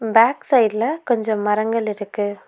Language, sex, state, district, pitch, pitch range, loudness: Tamil, female, Tamil Nadu, Nilgiris, 220 Hz, 210-230 Hz, -19 LUFS